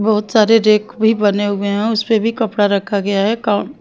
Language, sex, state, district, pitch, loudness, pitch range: Hindi, female, Bihar, West Champaran, 215 Hz, -15 LUFS, 205-220 Hz